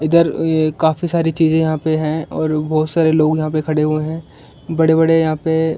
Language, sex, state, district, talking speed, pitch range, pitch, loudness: Hindi, female, Maharashtra, Chandrapur, 230 wpm, 155-160 Hz, 160 Hz, -16 LUFS